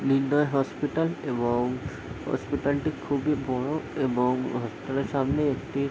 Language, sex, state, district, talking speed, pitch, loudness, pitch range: Bengali, male, West Bengal, Paschim Medinipur, 130 wpm, 135 Hz, -27 LUFS, 130-145 Hz